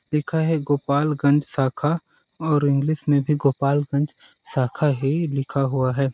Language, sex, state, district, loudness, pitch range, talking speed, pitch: Hindi, male, Chhattisgarh, Sarguja, -22 LUFS, 140-150 Hz, 135 wpm, 145 Hz